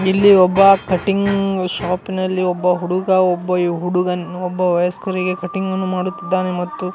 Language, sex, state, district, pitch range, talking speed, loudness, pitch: Kannada, male, Karnataka, Gulbarga, 180-190 Hz, 130 wpm, -17 LUFS, 185 Hz